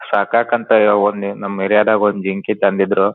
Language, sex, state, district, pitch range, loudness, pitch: Kannada, male, Karnataka, Dharwad, 100-105 Hz, -16 LUFS, 100 Hz